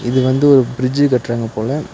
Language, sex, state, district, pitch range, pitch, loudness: Tamil, male, Tamil Nadu, Nilgiris, 120-140 Hz, 130 Hz, -15 LUFS